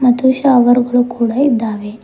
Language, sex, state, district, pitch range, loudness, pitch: Kannada, female, Karnataka, Bidar, 235-260 Hz, -13 LUFS, 245 Hz